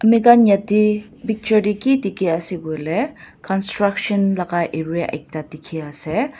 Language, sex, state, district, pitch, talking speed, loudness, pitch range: Nagamese, female, Nagaland, Dimapur, 200 Hz, 110 wpm, -18 LUFS, 165-220 Hz